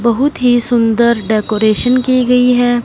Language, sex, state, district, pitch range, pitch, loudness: Hindi, female, Punjab, Fazilka, 230-250 Hz, 240 Hz, -12 LUFS